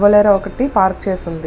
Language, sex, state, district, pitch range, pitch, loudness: Telugu, female, Andhra Pradesh, Srikakulam, 190-205 Hz, 195 Hz, -15 LUFS